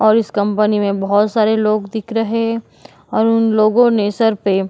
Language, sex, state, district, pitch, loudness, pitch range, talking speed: Hindi, female, Uttarakhand, Tehri Garhwal, 215 Hz, -15 LUFS, 205-225 Hz, 205 wpm